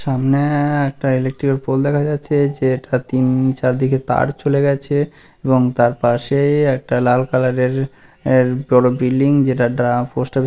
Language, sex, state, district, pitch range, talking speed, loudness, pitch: Bengali, male, West Bengal, Malda, 125-140 Hz, 170 wpm, -17 LUFS, 130 Hz